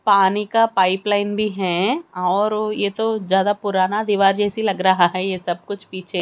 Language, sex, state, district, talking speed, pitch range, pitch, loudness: Hindi, female, Haryana, Charkhi Dadri, 205 wpm, 185-210 Hz, 200 Hz, -19 LUFS